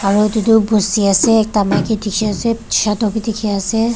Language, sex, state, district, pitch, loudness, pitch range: Nagamese, female, Nagaland, Kohima, 215 Hz, -15 LUFS, 205-220 Hz